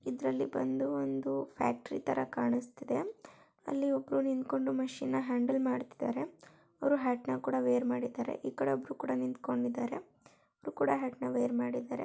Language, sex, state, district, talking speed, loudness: Kannada, female, Karnataka, Shimoga, 150 wpm, -34 LUFS